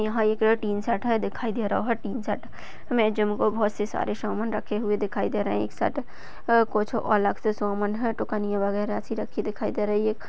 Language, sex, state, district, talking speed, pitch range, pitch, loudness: Hindi, female, Maharashtra, Sindhudurg, 205 wpm, 210-225 Hz, 215 Hz, -26 LUFS